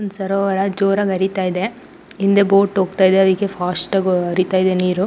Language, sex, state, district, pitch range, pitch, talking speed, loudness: Kannada, female, Karnataka, Shimoga, 185-195 Hz, 190 Hz, 175 wpm, -17 LUFS